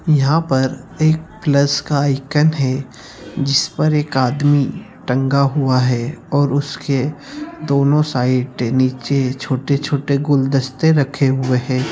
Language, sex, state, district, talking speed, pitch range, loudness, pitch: Hindi, male, Bihar, Jamui, 120 wpm, 130-145 Hz, -17 LUFS, 140 Hz